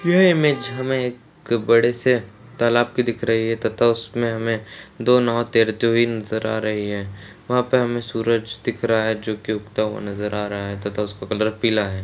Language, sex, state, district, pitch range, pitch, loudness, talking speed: Hindi, male, Uttar Pradesh, Ghazipur, 110-120 Hz, 115 Hz, -21 LUFS, 200 wpm